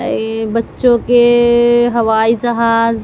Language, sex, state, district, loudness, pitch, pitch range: Hindi, female, Bihar, West Champaran, -12 LUFS, 235 Hz, 230-240 Hz